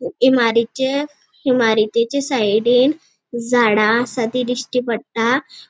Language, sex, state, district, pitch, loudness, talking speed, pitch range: Konkani, female, Goa, North and South Goa, 245 Hz, -17 LUFS, 85 wpm, 230-260 Hz